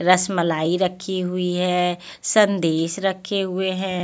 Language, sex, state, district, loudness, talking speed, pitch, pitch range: Hindi, female, Punjab, Pathankot, -21 LUFS, 135 wpm, 180 Hz, 180-190 Hz